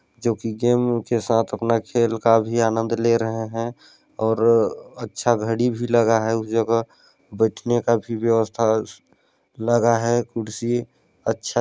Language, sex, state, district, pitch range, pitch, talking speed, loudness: Hindi, male, Chhattisgarh, Balrampur, 115-120 Hz, 115 Hz, 155 wpm, -21 LUFS